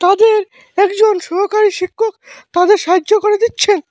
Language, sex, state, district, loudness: Bengali, male, Assam, Hailakandi, -14 LUFS